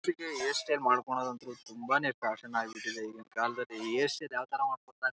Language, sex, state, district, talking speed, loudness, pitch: Kannada, male, Karnataka, Raichur, 150 wpm, -33 LUFS, 125 Hz